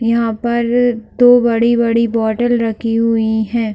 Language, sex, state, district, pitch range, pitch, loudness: Hindi, female, Jharkhand, Sahebganj, 225-235 Hz, 230 Hz, -14 LUFS